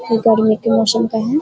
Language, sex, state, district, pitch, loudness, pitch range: Hindi, female, Bihar, Darbhanga, 225 Hz, -15 LUFS, 225-230 Hz